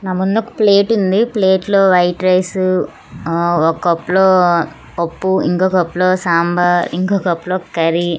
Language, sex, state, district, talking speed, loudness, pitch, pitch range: Telugu, female, Andhra Pradesh, Manyam, 160 wpm, -14 LUFS, 185 Hz, 170-190 Hz